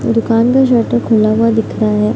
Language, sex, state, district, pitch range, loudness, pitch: Hindi, female, Bihar, Araria, 215-240 Hz, -12 LUFS, 230 Hz